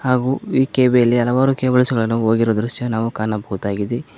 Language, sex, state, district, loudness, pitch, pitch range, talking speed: Kannada, male, Karnataka, Koppal, -18 LUFS, 120 Hz, 110-130 Hz, 160 wpm